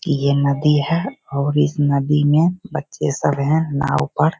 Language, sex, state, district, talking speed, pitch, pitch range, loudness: Hindi, male, Bihar, Begusarai, 175 wpm, 145 Hz, 140-155 Hz, -18 LUFS